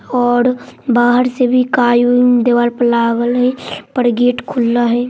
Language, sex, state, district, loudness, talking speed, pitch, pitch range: Maithili, male, Bihar, Samastipur, -13 LUFS, 155 wpm, 245 Hz, 240-250 Hz